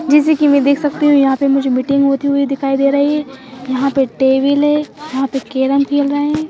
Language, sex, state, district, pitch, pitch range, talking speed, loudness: Hindi, female, Madhya Pradesh, Bhopal, 280 Hz, 270-290 Hz, 240 wpm, -14 LUFS